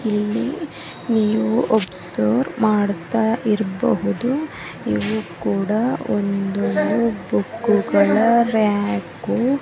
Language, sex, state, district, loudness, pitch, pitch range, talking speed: Kannada, female, Karnataka, Mysore, -20 LUFS, 215 Hz, 200-230 Hz, 75 wpm